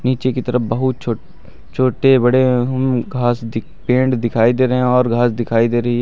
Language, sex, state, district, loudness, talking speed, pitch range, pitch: Hindi, male, Uttar Pradesh, Lucknow, -16 LUFS, 210 wpm, 120-130 Hz, 125 Hz